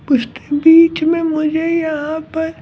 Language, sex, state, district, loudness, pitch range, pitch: Hindi, male, Bihar, Patna, -15 LUFS, 305-325 Hz, 315 Hz